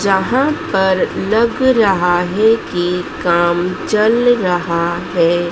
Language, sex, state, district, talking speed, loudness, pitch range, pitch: Hindi, female, Madhya Pradesh, Dhar, 110 wpm, -15 LUFS, 175-225 Hz, 185 Hz